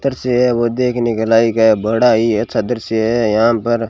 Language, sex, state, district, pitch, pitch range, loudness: Hindi, male, Rajasthan, Bikaner, 115 Hz, 110-120 Hz, -15 LUFS